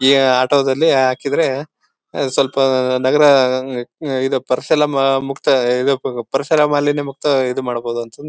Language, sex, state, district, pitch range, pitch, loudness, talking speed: Kannada, male, Karnataka, Bellary, 130-140 Hz, 135 Hz, -16 LUFS, 125 wpm